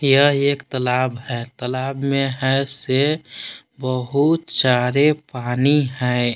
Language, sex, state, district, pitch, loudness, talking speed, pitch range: Hindi, male, Jharkhand, Palamu, 130 Hz, -19 LUFS, 115 wpm, 125-140 Hz